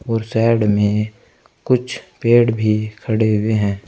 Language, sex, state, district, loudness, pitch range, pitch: Hindi, male, Uttar Pradesh, Saharanpur, -17 LUFS, 105-115 Hz, 110 Hz